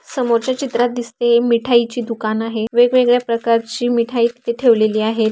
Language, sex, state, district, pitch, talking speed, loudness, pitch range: Marathi, female, Maharashtra, Aurangabad, 235 Hz, 145 wpm, -16 LUFS, 230-245 Hz